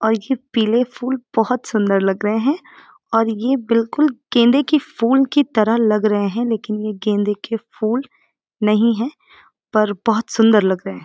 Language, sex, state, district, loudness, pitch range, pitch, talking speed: Hindi, female, Uttarakhand, Uttarkashi, -18 LUFS, 215-255 Hz, 225 Hz, 180 wpm